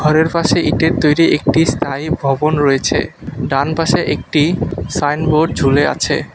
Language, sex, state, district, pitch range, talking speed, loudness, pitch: Bengali, male, West Bengal, Alipurduar, 145-160 Hz, 130 wpm, -15 LUFS, 155 Hz